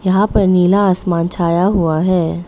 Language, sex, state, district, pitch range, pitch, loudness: Hindi, female, Arunachal Pradesh, Lower Dibang Valley, 170-195 Hz, 180 Hz, -14 LUFS